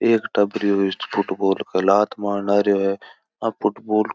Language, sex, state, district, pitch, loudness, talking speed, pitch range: Marwari, male, Rajasthan, Churu, 100 Hz, -21 LUFS, 160 wpm, 100-105 Hz